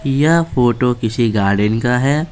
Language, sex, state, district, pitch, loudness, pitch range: Hindi, male, Bihar, Patna, 125 Hz, -15 LUFS, 115-140 Hz